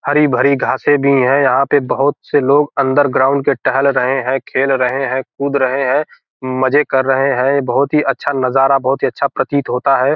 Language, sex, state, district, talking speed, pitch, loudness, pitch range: Hindi, male, Bihar, Gopalganj, 215 wpm, 135 Hz, -14 LUFS, 130-140 Hz